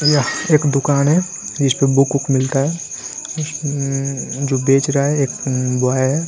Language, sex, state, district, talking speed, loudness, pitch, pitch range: Hindi, male, Uttar Pradesh, Muzaffarnagar, 180 wpm, -17 LUFS, 140 Hz, 135-150 Hz